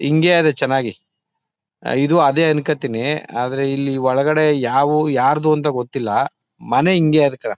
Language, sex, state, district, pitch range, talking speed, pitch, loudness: Kannada, male, Karnataka, Mysore, 135-155 Hz, 135 wpm, 145 Hz, -17 LUFS